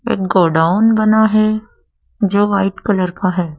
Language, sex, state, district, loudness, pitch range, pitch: Hindi, female, Madhya Pradesh, Dhar, -14 LUFS, 185-215 Hz, 205 Hz